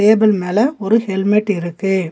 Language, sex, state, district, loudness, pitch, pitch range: Tamil, female, Tamil Nadu, Nilgiris, -16 LUFS, 205 Hz, 190-215 Hz